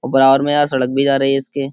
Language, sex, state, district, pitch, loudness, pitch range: Hindi, male, Uttar Pradesh, Jyotiba Phule Nagar, 135 Hz, -15 LUFS, 135-140 Hz